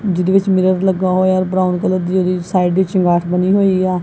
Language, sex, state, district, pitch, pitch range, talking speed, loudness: Punjabi, female, Punjab, Kapurthala, 185 Hz, 180-190 Hz, 225 wpm, -15 LUFS